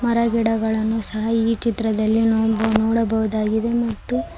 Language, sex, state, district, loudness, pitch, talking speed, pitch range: Kannada, female, Karnataka, Koppal, -20 LUFS, 225 Hz, 110 wpm, 220-230 Hz